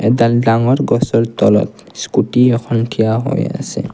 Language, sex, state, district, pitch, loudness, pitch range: Assamese, male, Assam, Kamrup Metropolitan, 120 Hz, -14 LUFS, 115-130 Hz